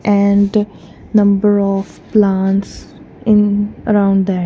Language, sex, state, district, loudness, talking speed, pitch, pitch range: English, female, Punjab, Kapurthala, -14 LUFS, 95 wpm, 200 Hz, 195-210 Hz